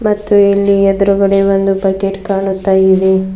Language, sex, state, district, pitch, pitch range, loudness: Kannada, female, Karnataka, Bidar, 195 Hz, 195-200 Hz, -12 LUFS